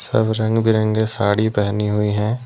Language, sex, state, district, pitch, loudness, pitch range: Hindi, male, Jharkhand, Deoghar, 110 Hz, -18 LUFS, 105-110 Hz